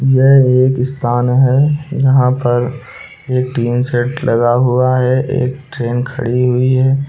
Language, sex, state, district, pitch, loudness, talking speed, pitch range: Hindi, male, Bihar, Bhagalpur, 125 Hz, -13 LUFS, 135 wpm, 125-135 Hz